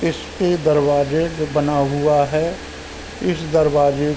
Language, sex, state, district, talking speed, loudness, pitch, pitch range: Hindi, male, Uttar Pradesh, Ghazipur, 115 wpm, -18 LUFS, 150 Hz, 145-160 Hz